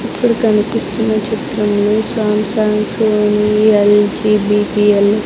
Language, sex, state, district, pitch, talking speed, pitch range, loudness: Telugu, female, Andhra Pradesh, Sri Satya Sai, 210 Hz, 125 wpm, 210-220 Hz, -14 LUFS